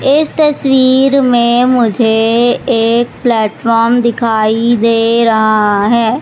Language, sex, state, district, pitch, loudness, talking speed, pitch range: Hindi, male, Madhya Pradesh, Katni, 235 Hz, -10 LUFS, 95 wpm, 225-250 Hz